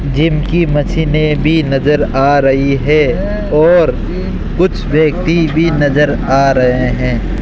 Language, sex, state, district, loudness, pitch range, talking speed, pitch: Hindi, male, Rajasthan, Jaipur, -12 LUFS, 135-160 Hz, 130 wpm, 150 Hz